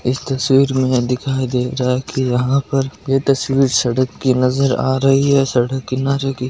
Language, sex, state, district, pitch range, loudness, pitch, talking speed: Marwari, male, Rajasthan, Nagaur, 125-135 Hz, -17 LUFS, 130 Hz, 205 wpm